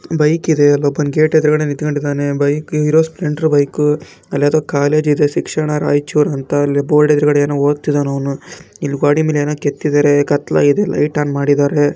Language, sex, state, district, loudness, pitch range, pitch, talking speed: Kannada, male, Karnataka, Raichur, -15 LUFS, 145-150 Hz, 145 Hz, 165 wpm